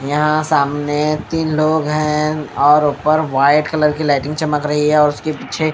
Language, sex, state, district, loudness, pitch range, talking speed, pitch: Hindi, male, Bihar, Katihar, -16 LUFS, 150-155 Hz, 180 wpm, 150 Hz